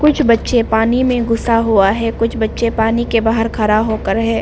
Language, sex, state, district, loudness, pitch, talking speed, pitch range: Hindi, female, Arunachal Pradesh, Papum Pare, -15 LUFS, 230 Hz, 205 wpm, 220-235 Hz